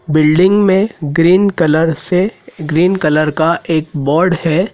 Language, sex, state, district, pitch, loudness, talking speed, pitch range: Hindi, male, Madhya Pradesh, Dhar, 165 Hz, -13 LUFS, 140 wpm, 155-185 Hz